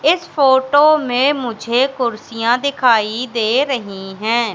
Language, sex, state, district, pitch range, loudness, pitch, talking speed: Hindi, female, Madhya Pradesh, Katni, 230-275 Hz, -16 LUFS, 245 Hz, 120 wpm